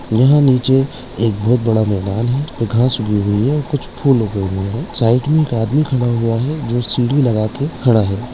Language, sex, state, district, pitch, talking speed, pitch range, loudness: Hindi, male, Bihar, Gaya, 120 Hz, 210 wpm, 110-135 Hz, -16 LUFS